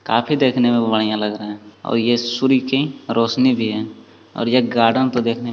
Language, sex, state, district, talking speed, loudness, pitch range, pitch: Hindi, male, Bihar, Jamui, 205 wpm, -18 LUFS, 110-125 Hz, 120 Hz